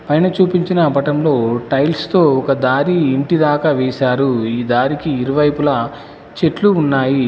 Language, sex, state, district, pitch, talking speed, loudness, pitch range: Telugu, male, Telangana, Mahabubabad, 145 Hz, 115 wpm, -15 LUFS, 130-155 Hz